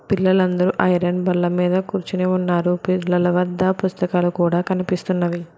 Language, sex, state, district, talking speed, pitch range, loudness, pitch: Telugu, female, Telangana, Hyderabad, 120 wpm, 175-185 Hz, -19 LUFS, 180 Hz